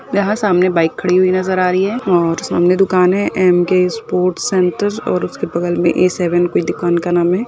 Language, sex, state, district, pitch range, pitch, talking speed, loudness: Hindi, female, Uttar Pradesh, Budaun, 175-190 Hz, 180 Hz, 215 wpm, -15 LUFS